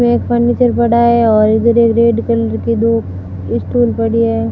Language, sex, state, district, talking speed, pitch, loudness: Hindi, female, Rajasthan, Barmer, 200 wpm, 215 Hz, -13 LUFS